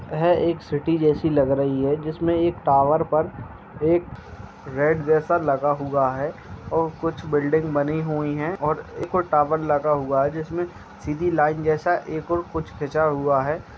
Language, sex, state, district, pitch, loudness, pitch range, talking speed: Hindi, male, Bihar, Bhagalpur, 155 Hz, -22 LUFS, 145-165 Hz, 165 wpm